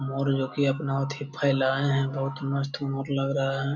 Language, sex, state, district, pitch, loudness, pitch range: Hindi, male, Bihar, Jamui, 135 Hz, -27 LUFS, 135-140 Hz